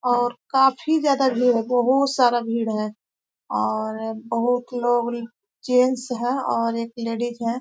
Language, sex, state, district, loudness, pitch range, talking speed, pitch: Hindi, female, Chhattisgarh, Korba, -22 LUFS, 230-250 Hz, 150 wpm, 240 Hz